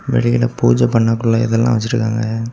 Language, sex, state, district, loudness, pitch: Tamil, male, Tamil Nadu, Kanyakumari, -15 LUFS, 115 Hz